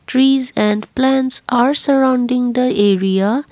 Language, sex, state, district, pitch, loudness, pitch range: English, female, Assam, Kamrup Metropolitan, 250 Hz, -15 LUFS, 215-265 Hz